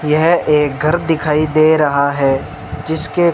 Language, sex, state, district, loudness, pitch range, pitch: Hindi, male, Rajasthan, Bikaner, -14 LUFS, 150-160 Hz, 155 Hz